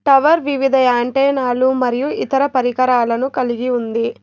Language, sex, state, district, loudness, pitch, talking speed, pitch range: Telugu, female, Telangana, Hyderabad, -16 LUFS, 255 Hz, 125 wpm, 245-270 Hz